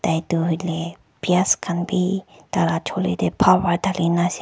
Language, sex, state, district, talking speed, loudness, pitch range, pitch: Nagamese, male, Nagaland, Kohima, 175 wpm, -21 LUFS, 165-180 Hz, 175 Hz